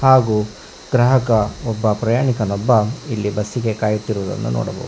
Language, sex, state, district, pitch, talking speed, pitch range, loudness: Kannada, male, Karnataka, Bangalore, 110 Hz, 110 wpm, 105-120 Hz, -18 LUFS